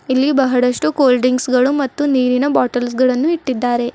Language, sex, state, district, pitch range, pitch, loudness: Kannada, female, Karnataka, Bidar, 250-280 Hz, 255 Hz, -15 LUFS